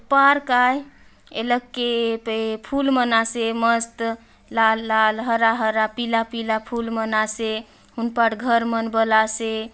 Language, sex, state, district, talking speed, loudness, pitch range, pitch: Halbi, female, Chhattisgarh, Bastar, 115 wpm, -21 LUFS, 220-235 Hz, 230 Hz